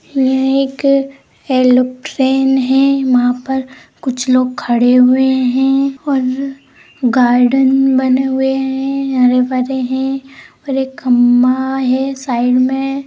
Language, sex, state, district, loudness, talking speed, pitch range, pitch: Hindi, female, Bihar, Madhepura, -13 LUFS, 110 wpm, 255-270 Hz, 265 Hz